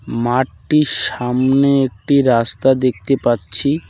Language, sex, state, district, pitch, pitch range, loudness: Bengali, male, West Bengal, Cooch Behar, 130 Hz, 120-135 Hz, -15 LUFS